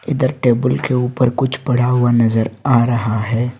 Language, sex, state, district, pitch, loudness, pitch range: Hindi, male, Assam, Hailakandi, 125 Hz, -16 LUFS, 120-130 Hz